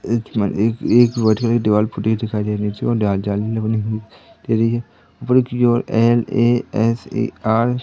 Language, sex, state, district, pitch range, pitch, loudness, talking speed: Hindi, male, Madhya Pradesh, Katni, 110-120 Hz, 115 Hz, -18 LUFS, 155 wpm